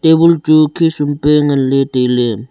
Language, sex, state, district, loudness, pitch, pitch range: Wancho, male, Arunachal Pradesh, Longding, -12 LUFS, 145 Hz, 130-160 Hz